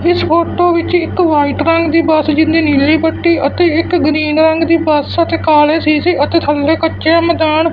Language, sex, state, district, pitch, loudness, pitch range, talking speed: Punjabi, male, Punjab, Fazilka, 320 Hz, -12 LUFS, 305-335 Hz, 195 wpm